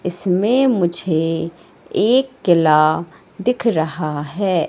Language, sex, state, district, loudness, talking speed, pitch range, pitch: Hindi, female, Madhya Pradesh, Katni, -17 LUFS, 90 wpm, 160-210 Hz, 175 Hz